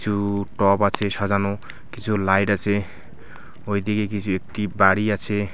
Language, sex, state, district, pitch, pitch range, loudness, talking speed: Bengali, male, West Bengal, Alipurduar, 100 Hz, 100-105 Hz, -22 LUFS, 130 wpm